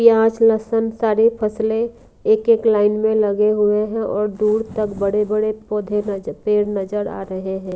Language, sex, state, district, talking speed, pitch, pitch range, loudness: Hindi, female, Punjab, Kapurthala, 155 wpm, 215 Hz, 210-220 Hz, -19 LUFS